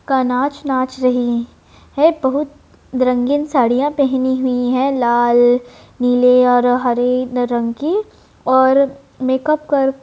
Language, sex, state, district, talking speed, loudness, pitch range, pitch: Hindi, female, Bihar, Vaishali, 125 wpm, -16 LUFS, 245-275 Hz, 255 Hz